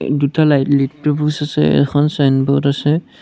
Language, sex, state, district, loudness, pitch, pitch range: Assamese, male, Assam, Sonitpur, -15 LUFS, 145 Hz, 140-150 Hz